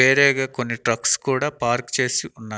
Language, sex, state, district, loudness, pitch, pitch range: Telugu, male, Andhra Pradesh, Annamaya, -21 LUFS, 125 Hz, 120-135 Hz